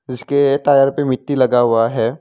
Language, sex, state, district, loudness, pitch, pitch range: Hindi, male, Assam, Kamrup Metropolitan, -15 LUFS, 130 Hz, 120-140 Hz